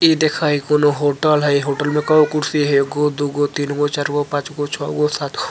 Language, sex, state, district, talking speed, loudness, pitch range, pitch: Bajjika, male, Bihar, Vaishali, 250 wpm, -18 LUFS, 145-150 Hz, 145 Hz